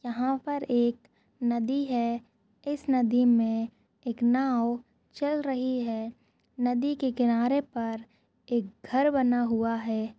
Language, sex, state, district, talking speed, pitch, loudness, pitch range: Hindi, female, Goa, North and South Goa, 130 wpm, 240 Hz, -28 LUFS, 230-260 Hz